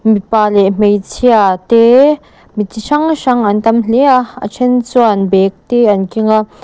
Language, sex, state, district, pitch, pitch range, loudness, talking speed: Mizo, female, Mizoram, Aizawl, 220 Hz, 205-250 Hz, -11 LUFS, 180 wpm